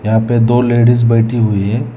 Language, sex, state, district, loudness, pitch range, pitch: Hindi, male, Telangana, Hyderabad, -12 LUFS, 110-120 Hz, 115 Hz